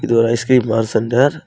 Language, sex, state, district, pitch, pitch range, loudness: Tamil, male, Tamil Nadu, Kanyakumari, 120 Hz, 115-130 Hz, -15 LUFS